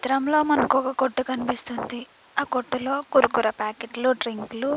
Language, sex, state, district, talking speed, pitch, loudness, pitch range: Telugu, female, Andhra Pradesh, Krishna, 140 wpm, 255 Hz, -24 LUFS, 235-270 Hz